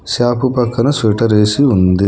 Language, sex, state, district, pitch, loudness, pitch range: Telugu, male, Telangana, Hyderabad, 115 Hz, -13 LUFS, 105-125 Hz